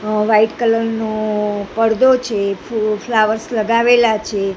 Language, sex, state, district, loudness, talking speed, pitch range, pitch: Gujarati, female, Gujarat, Gandhinagar, -16 LUFS, 120 wpm, 210-230 Hz, 220 Hz